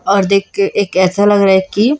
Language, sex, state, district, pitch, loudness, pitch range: Hindi, female, Chhattisgarh, Raipur, 200 Hz, -12 LUFS, 190-205 Hz